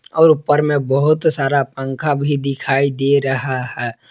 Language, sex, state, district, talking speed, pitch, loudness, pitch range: Hindi, male, Jharkhand, Palamu, 160 wpm, 140 Hz, -17 LUFS, 135-145 Hz